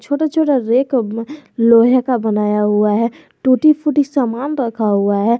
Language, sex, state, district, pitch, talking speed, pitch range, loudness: Hindi, male, Jharkhand, Garhwa, 240 Hz, 165 wpm, 220-280 Hz, -15 LUFS